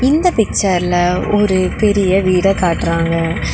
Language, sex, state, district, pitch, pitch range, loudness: Tamil, female, Tamil Nadu, Nilgiris, 190 Hz, 175-205 Hz, -14 LUFS